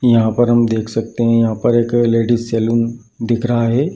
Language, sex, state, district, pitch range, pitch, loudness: Hindi, male, Bihar, Darbhanga, 115-120 Hz, 115 Hz, -16 LUFS